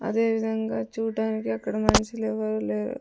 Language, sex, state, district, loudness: Telugu, female, Andhra Pradesh, Sri Satya Sai, -26 LUFS